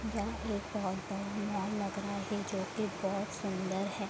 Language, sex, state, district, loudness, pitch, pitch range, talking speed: Hindi, female, Bihar, Gopalganj, -36 LUFS, 200 Hz, 195-205 Hz, 190 wpm